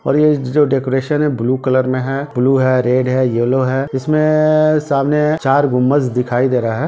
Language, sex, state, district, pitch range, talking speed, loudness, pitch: Hindi, male, Bihar, Sitamarhi, 130-150 Hz, 210 wpm, -15 LUFS, 135 Hz